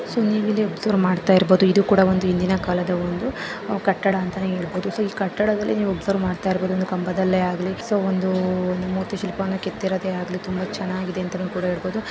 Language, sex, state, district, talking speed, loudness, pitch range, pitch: Kannada, female, Karnataka, Bellary, 170 wpm, -22 LUFS, 185-195 Hz, 190 Hz